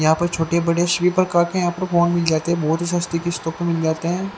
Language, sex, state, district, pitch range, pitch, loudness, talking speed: Hindi, female, Haryana, Charkhi Dadri, 165-175 Hz, 170 Hz, -20 LUFS, 290 wpm